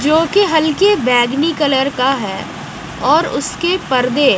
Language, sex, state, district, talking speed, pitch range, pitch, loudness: Hindi, female, Odisha, Malkangiri, 135 wpm, 265-330 Hz, 295 Hz, -14 LUFS